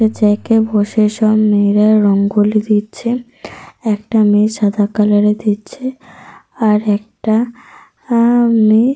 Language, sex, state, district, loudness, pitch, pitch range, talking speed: Bengali, female, Jharkhand, Sahebganj, -14 LUFS, 215 Hz, 210-230 Hz, 100 wpm